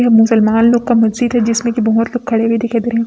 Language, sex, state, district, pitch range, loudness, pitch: Hindi, female, Chhattisgarh, Raipur, 225-235 Hz, -13 LUFS, 230 Hz